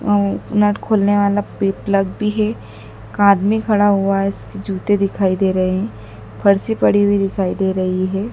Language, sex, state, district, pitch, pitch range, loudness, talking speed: Hindi, female, Madhya Pradesh, Dhar, 195 Hz, 190-205 Hz, -17 LUFS, 195 wpm